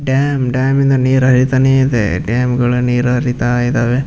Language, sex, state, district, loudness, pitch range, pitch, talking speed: Kannada, male, Karnataka, Raichur, -14 LUFS, 120-130 Hz, 125 Hz, 145 wpm